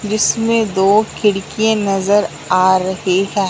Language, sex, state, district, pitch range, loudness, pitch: Hindi, male, Punjab, Fazilka, 190-215 Hz, -15 LUFS, 200 Hz